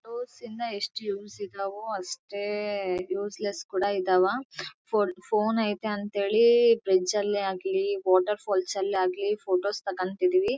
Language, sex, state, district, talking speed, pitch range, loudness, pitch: Kannada, female, Karnataka, Bellary, 125 wpm, 190-215 Hz, -27 LUFS, 200 Hz